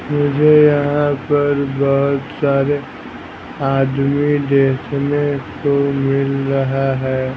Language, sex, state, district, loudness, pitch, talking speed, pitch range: Hindi, male, Bihar, Patna, -16 LUFS, 140 Hz, 90 wpm, 135-145 Hz